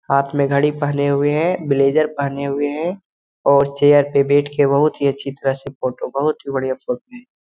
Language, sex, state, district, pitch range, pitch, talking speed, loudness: Hindi, male, Bihar, Lakhisarai, 140-150 Hz, 140 Hz, 210 wpm, -18 LUFS